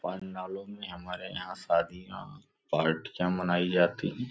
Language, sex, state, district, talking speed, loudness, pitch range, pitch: Hindi, male, Uttar Pradesh, Gorakhpur, 125 wpm, -31 LUFS, 90-95 Hz, 90 Hz